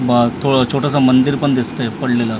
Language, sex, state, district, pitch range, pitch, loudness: Marathi, male, Maharashtra, Mumbai Suburban, 120-140 Hz, 130 Hz, -15 LUFS